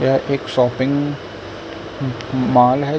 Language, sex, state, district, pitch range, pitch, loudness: Hindi, male, Uttar Pradesh, Lucknow, 125-140 Hz, 130 Hz, -18 LUFS